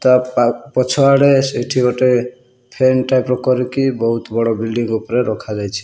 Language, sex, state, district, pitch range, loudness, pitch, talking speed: Odia, male, Odisha, Malkangiri, 115-130 Hz, -16 LUFS, 125 Hz, 145 wpm